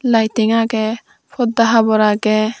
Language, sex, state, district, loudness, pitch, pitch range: Chakma, female, Tripura, Dhalai, -15 LUFS, 225 Hz, 220-230 Hz